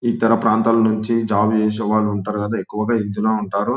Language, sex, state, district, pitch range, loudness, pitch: Telugu, male, Telangana, Nalgonda, 105-115 Hz, -18 LUFS, 110 Hz